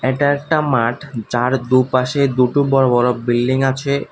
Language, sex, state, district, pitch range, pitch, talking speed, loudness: Bengali, male, Tripura, West Tripura, 125-140 Hz, 130 Hz, 145 wpm, -16 LUFS